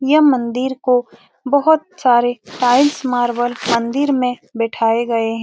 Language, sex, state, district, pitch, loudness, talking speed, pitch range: Hindi, female, Bihar, Saran, 245 Hz, -16 LUFS, 130 wpm, 235-270 Hz